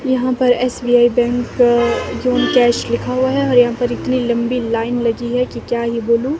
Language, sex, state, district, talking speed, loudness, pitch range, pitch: Hindi, female, Himachal Pradesh, Shimla, 205 wpm, -16 LUFS, 240-250 Hz, 245 Hz